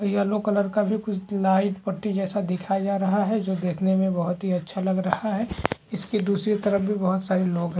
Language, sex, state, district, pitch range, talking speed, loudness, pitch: Hindi, male, Chhattisgarh, Balrampur, 190-205 Hz, 230 wpm, -25 LUFS, 195 Hz